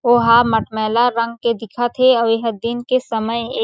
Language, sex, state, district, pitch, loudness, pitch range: Chhattisgarhi, female, Chhattisgarh, Sarguja, 235 Hz, -17 LUFS, 230-240 Hz